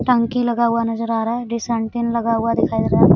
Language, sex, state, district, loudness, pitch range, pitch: Hindi, female, Bihar, Araria, -19 LUFS, 230-235 Hz, 230 Hz